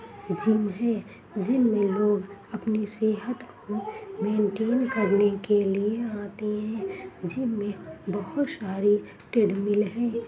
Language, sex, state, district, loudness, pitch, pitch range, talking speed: Hindi, female, Bihar, Saharsa, -27 LUFS, 210 Hz, 205-225 Hz, 115 wpm